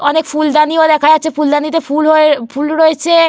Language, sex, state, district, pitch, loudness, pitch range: Bengali, female, Jharkhand, Jamtara, 310 Hz, -11 LUFS, 300-320 Hz